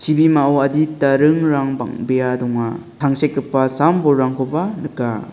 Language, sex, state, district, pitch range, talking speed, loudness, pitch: Garo, male, Meghalaya, South Garo Hills, 130-155 Hz, 90 wpm, -17 LUFS, 140 Hz